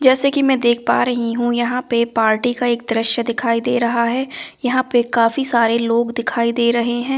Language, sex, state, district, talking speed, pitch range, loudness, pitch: Hindi, female, Delhi, New Delhi, 215 wpm, 235-250 Hz, -17 LUFS, 240 Hz